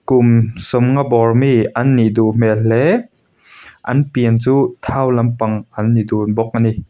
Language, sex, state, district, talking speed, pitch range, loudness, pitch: Mizo, male, Mizoram, Aizawl, 165 wpm, 110-130 Hz, -15 LUFS, 115 Hz